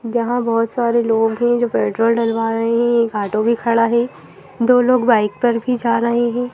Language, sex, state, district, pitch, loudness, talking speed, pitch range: Hindi, female, Madhya Pradesh, Bhopal, 235 Hz, -17 LUFS, 210 wpm, 230-240 Hz